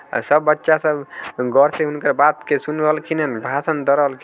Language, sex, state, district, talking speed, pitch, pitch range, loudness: Maithili, male, Bihar, Samastipur, 195 wpm, 150 Hz, 140-155 Hz, -18 LUFS